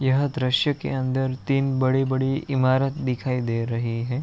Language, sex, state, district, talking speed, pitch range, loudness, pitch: Hindi, male, Bihar, Araria, 155 wpm, 125-135 Hz, -23 LUFS, 130 Hz